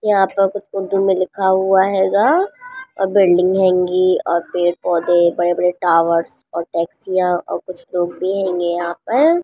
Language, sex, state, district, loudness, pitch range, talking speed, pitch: Hindi, female, Bihar, Jamui, -17 LUFS, 175-195 Hz, 155 wpm, 185 Hz